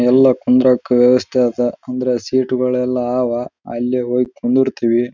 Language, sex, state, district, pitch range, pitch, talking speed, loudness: Kannada, male, Karnataka, Raichur, 120-125 Hz, 125 Hz, 200 wpm, -16 LUFS